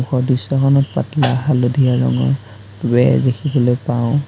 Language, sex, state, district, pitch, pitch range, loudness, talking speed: Assamese, male, Assam, Sonitpur, 125 Hz, 120-135 Hz, -16 LUFS, 110 wpm